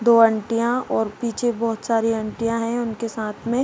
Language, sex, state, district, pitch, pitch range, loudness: Hindi, female, Jharkhand, Sahebganj, 230 Hz, 225-235 Hz, -22 LUFS